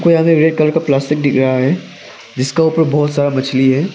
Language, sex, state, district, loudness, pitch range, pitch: Hindi, male, Arunachal Pradesh, Papum Pare, -14 LUFS, 135-160 Hz, 150 Hz